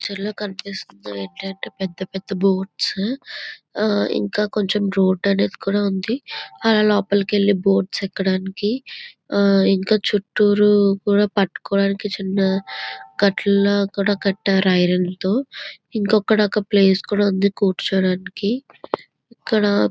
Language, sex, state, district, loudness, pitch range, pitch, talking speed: Telugu, female, Andhra Pradesh, Visakhapatnam, -20 LUFS, 190-210 Hz, 200 Hz, 120 wpm